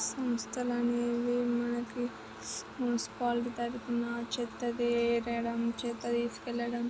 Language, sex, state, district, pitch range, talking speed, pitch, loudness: Telugu, male, Andhra Pradesh, Chittoor, 235-240 Hz, 70 wpm, 240 Hz, -33 LUFS